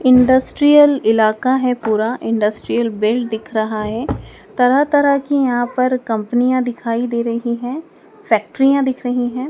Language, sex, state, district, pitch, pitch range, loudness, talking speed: Hindi, female, Madhya Pradesh, Dhar, 245 Hz, 225-265 Hz, -16 LUFS, 145 wpm